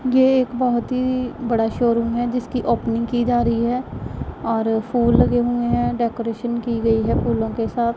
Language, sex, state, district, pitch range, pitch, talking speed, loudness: Hindi, female, Punjab, Pathankot, 230-245 Hz, 235 Hz, 190 wpm, -20 LUFS